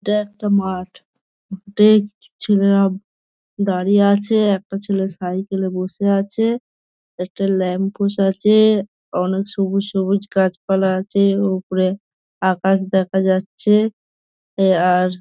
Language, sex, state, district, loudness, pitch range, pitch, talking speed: Bengali, female, West Bengal, Dakshin Dinajpur, -18 LUFS, 190-205 Hz, 195 Hz, 120 wpm